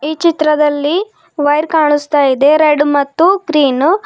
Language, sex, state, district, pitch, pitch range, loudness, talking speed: Kannada, female, Karnataka, Bidar, 300 Hz, 290-320 Hz, -12 LUFS, 120 wpm